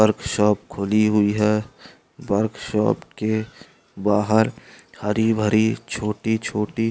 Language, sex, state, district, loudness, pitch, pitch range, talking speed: Hindi, male, Andhra Pradesh, Anantapur, -21 LUFS, 105 Hz, 105-110 Hz, 105 wpm